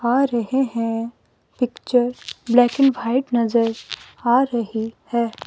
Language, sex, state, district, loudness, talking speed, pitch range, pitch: Hindi, female, Himachal Pradesh, Shimla, -20 LUFS, 120 wpm, 230-250 Hz, 240 Hz